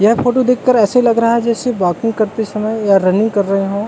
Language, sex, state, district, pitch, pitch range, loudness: Hindi, male, Uttarakhand, Uttarkashi, 220 Hz, 200-235 Hz, -14 LUFS